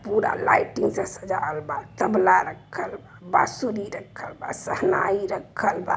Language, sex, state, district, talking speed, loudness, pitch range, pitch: Hindi, female, Uttar Pradesh, Varanasi, 140 wpm, -24 LUFS, 195-215 Hz, 200 Hz